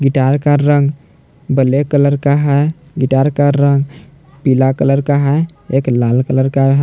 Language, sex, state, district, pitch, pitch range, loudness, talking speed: Hindi, male, Jharkhand, Palamu, 140 Hz, 135-145 Hz, -13 LUFS, 150 wpm